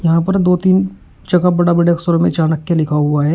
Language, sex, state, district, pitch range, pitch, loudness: Hindi, male, Uttar Pradesh, Shamli, 160-180 Hz, 170 Hz, -14 LUFS